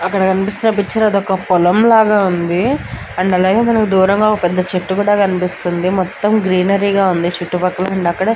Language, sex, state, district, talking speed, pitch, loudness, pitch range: Telugu, male, Andhra Pradesh, Anantapur, 165 wpm, 190 Hz, -14 LUFS, 180-205 Hz